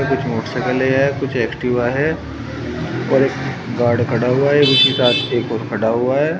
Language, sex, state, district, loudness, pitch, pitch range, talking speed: Hindi, male, Uttar Pradesh, Shamli, -17 LUFS, 130 Hz, 120-135 Hz, 185 wpm